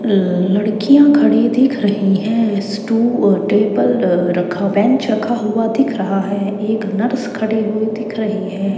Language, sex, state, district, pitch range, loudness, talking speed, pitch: Hindi, female, Chandigarh, Chandigarh, 200-230 Hz, -15 LUFS, 155 wpm, 215 Hz